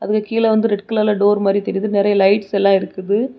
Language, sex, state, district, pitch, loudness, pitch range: Tamil, female, Tamil Nadu, Kanyakumari, 205 Hz, -16 LUFS, 200-215 Hz